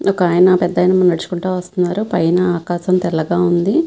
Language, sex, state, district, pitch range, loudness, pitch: Telugu, female, Andhra Pradesh, Visakhapatnam, 175-185 Hz, -15 LUFS, 180 Hz